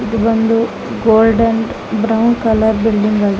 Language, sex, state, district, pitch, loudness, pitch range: Kannada, female, Karnataka, Mysore, 225 Hz, -14 LUFS, 220-225 Hz